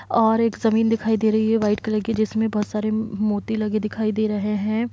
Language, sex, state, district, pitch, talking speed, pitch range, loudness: Hindi, female, Bihar, Kishanganj, 215 Hz, 230 wpm, 215-225 Hz, -22 LUFS